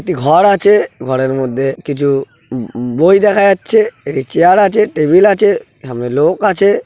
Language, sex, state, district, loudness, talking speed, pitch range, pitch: Bengali, male, West Bengal, Purulia, -12 LUFS, 120 wpm, 130-200 Hz, 160 Hz